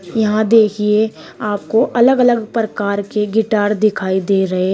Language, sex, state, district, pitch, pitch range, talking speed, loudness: Hindi, female, Uttar Pradesh, Shamli, 210 Hz, 200-220 Hz, 140 wpm, -15 LUFS